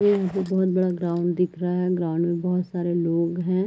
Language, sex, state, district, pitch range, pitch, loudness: Hindi, female, Chhattisgarh, Raigarh, 175-185 Hz, 180 Hz, -24 LUFS